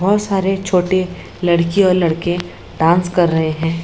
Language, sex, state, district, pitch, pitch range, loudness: Hindi, female, Bihar, Lakhisarai, 175 Hz, 170-190 Hz, -16 LUFS